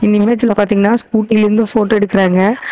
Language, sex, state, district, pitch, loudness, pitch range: Tamil, female, Tamil Nadu, Namakkal, 215 Hz, -12 LUFS, 205-220 Hz